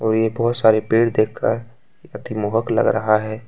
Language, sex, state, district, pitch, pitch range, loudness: Hindi, male, Jharkhand, Deoghar, 110 Hz, 110-115 Hz, -19 LUFS